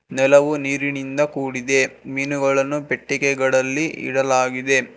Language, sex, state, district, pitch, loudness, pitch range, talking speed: Kannada, male, Karnataka, Bangalore, 135 Hz, -19 LUFS, 130-140 Hz, 70 wpm